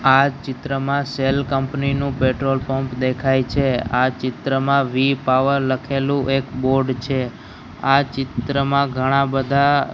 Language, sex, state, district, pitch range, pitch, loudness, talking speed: Gujarati, male, Gujarat, Gandhinagar, 130-140 Hz, 135 Hz, -19 LUFS, 125 wpm